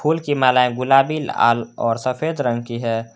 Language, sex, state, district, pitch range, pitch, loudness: Hindi, male, Jharkhand, Garhwa, 120-145 Hz, 125 Hz, -19 LUFS